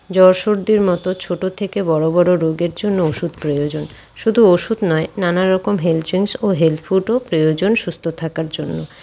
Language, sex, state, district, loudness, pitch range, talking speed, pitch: Bengali, female, West Bengal, Cooch Behar, -17 LUFS, 160-195 Hz, 175 wpm, 175 Hz